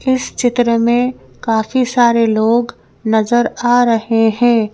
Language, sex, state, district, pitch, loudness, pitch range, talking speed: Hindi, female, Madhya Pradesh, Bhopal, 235 Hz, -14 LUFS, 225-245 Hz, 125 wpm